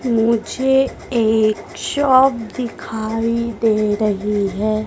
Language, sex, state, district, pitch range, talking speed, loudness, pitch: Hindi, female, Madhya Pradesh, Dhar, 215-245 Hz, 85 wpm, -18 LUFS, 225 Hz